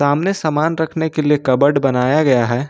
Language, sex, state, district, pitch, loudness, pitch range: Hindi, male, Jharkhand, Ranchi, 150 Hz, -16 LUFS, 135-155 Hz